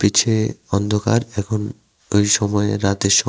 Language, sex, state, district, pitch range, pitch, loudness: Bengali, male, Tripura, West Tripura, 100-110 Hz, 105 Hz, -19 LUFS